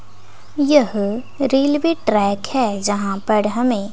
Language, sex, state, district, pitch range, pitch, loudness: Hindi, female, Bihar, West Champaran, 205-275 Hz, 220 Hz, -18 LUFS